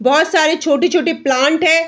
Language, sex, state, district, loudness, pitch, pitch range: Hindi, female, Bihar, Darbhanga, -14 LUFS, 320 Hz, 285-330 Hz